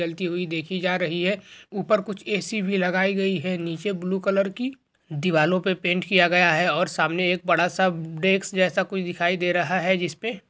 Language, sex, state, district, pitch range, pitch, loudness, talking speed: Hindi, male, West Bengal, Kolkata, 175-195 Hz, 185 Hz, -23 LUFS, 210 wpm